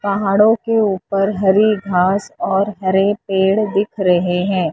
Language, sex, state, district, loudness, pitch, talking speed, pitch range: Hindi, female, Maharashtra, Mumbai Suburban, -16 LUFS, 195 Hz, 140 wpm, 190-205 Hz